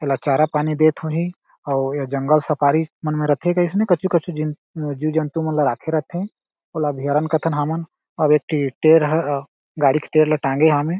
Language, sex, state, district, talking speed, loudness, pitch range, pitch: Chhattisgarhi, male, Chhattisgarh, Jashpur, 185 wpm, -20 LUFS, 145-160 Hz, 155 Hz